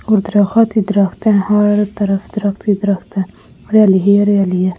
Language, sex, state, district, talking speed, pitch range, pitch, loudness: Hindi, female, Delhi, New Delhi, 75 wpm, 195-210 Hz, 205 Hz, -14 LUFS